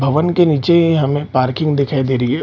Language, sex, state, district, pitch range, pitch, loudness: Hindi, male, Bihar, Purnia, 135-165 Hz, 145 Hz, -15 LUFS